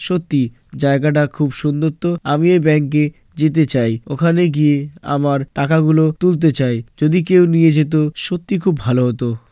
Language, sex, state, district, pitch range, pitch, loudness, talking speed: Bengali, male, West Bengal, Jalpaiguri, 140-165 Hz, 150 Hz, -16 LUFS, 160 wpm